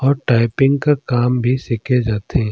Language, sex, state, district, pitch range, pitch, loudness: Surgujia, male, Chhattisgarh, Sarguja, 115-135 Hz, 125 Hz, -17 LUFS